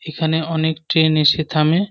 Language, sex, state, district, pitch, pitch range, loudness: Bengali, male, West Bengal, North 24 Parganas, 160 Hz, 155-160 Hz, -17 LUFS